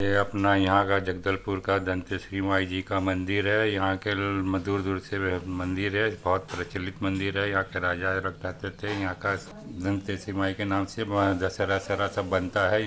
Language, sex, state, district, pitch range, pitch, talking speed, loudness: Hindi, male, Chhattisgarh, Bastar, 95-100 Hz, 95 Hz, 185 wpm, -27 LUFS